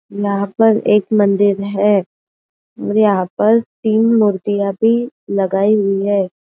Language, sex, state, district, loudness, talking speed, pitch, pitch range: Hindi, female, Maharashtra, Aurangabad, -15 LUFS, 130 wpm, 205 Hz, 200-215 Hz